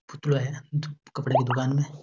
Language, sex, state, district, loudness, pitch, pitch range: Rajasthani, male, Rajasthan, Churu, -27 LUFS, 145 Hz, 135-145 Hz